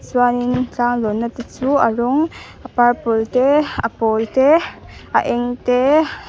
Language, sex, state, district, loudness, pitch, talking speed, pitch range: Mizo, female, Mizoram, Aizawl, -17 LUFS, 245 Hz, 155 wpm, 235-265 Hz